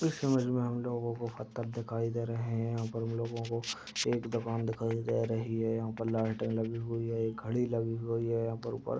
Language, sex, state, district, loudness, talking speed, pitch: Hindi, male, Uttar Pradesh, Deoria, -34 LUFS, 240 wpm, 115 Hz